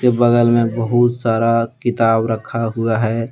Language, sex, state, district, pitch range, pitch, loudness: Hindi, male, Jharkhand, Deoghar, 115-120 Hz, 115 Hz, -16 LUFS